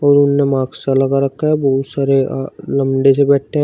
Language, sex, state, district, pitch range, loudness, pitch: Hindi, male, Uttar Pradesh, Shamli, 135-140 Hz, -15 LUFS, 135 Hz